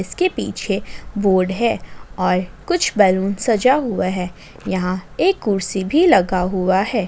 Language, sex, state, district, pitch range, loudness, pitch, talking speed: Hindi, female, Jharkhand, Ranchi, 185-245 Hz, -18 LUFS, 195 Hz, 145 wpm